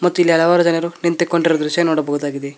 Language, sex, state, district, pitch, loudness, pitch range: Kannada, male, Karnataka, Koppal, 170 Hz, -16 LUFS, 155-170 Hz